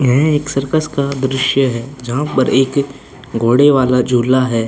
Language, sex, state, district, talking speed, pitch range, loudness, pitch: Hindi, male, Chhattisgarh, Korba, 165 wpm, 125-140 Hz, -15 LUFS, 135 Hz